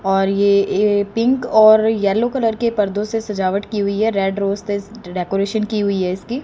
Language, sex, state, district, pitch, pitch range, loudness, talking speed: Hindi, female, Haryana, Rohtak, 205 Hz, 195-220 Hz, -17 LUFS, 205 wpm